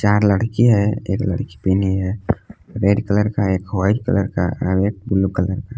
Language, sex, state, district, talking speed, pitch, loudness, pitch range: Hindi, male, Jharkhand, Palamu, 175 wpm, 100 Hz, -19 LUFS, 95-105 Hz